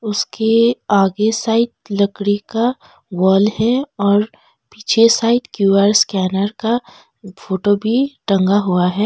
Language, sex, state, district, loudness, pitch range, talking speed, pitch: Hindi, female, West Bengal, Darjeeling, -16 LUFS, 200-230 Hz, 120 wpm, 210 Hz